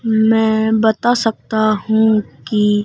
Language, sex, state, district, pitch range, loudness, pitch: Hindi, male, Madhya Pradesh, Bhopal, 215-225 Hz, -15 LUFS, 220 Hz